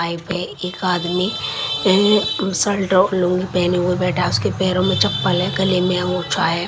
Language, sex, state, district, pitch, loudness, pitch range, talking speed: Hindi, female, Chhattisgarh, Raipur, 180 Hz, -18 LUFS, 175-190 Hz, 180 wpm